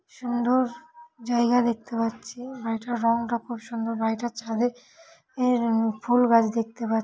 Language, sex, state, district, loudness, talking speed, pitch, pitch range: Bengali, female, West Bengal, North 24 Parganas, -25 LUFS, 135 wpm, 235 Hz, 230-245 Hz